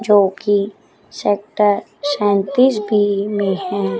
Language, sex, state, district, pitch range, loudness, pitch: Hindi, female, Chandigarh, Chandigarh, 200-210 Hz, -17 LUFS, 205 Hz